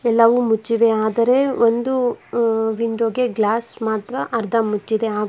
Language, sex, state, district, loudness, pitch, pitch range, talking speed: Kannada, female, Karnataka, Bangalore, -19 LUFS, 230 Hz, 220-235 Hz, 135 wpm